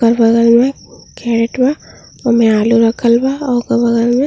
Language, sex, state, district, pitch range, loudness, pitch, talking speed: Bhojpuri, female, Uttar Pradesh, Ghazipur, 230-250 Hz, -13 LUFS, 235 Hz, 195 wpm